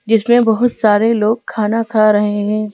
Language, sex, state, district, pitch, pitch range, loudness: Hindi, female, Madhya Pradesh, Bhopal, 215 Hz, 210-230 Hz, -14 LUFS